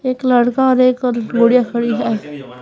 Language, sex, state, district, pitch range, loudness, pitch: Hindi, female, Haryana, Charkhi Dadri, 230-255 Hz, -15 LUFS, 240 Hz